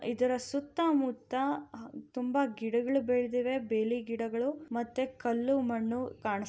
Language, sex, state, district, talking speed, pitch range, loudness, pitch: Kannada, female, Karnataka, Raichur, 100 wpm, 235-275 Hz, -32 LUFS, 250 Hz